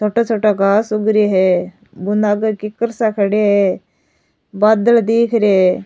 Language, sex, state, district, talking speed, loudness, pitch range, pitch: Rajasthani, female, Rajasthan, Nagaur, 165 wpm, -15 LUFS, 200-220 Hz, 210 Hz